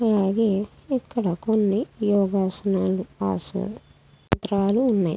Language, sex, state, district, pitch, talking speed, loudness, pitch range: Telugu, female, Andhra Pradesh, Krishna, 200 Hz, 80 wpm, -24 LUFS, 190-220 Hz